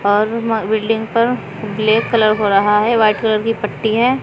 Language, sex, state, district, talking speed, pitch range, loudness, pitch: Hindi, female, Uttar Pradesh, Shamli, 185 wpm, 210-225 Hz, -16 LUFS, 220 Hz